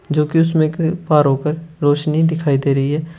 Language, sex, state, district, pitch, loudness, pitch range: Hindi, male, Uttar Pradesh, Shamli, 155 Hz, -17 LUFS, 145-165 Hz